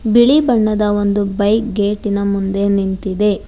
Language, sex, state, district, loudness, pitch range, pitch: Kannada, female, Karnataka, Bangalore, -15 LUFS, 200-215 Hz, 205 Hz